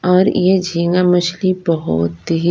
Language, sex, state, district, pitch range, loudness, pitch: Hindi, female, Punjab, Kapurthala, 165-185 Hz, -15 LUFS, 175 Hz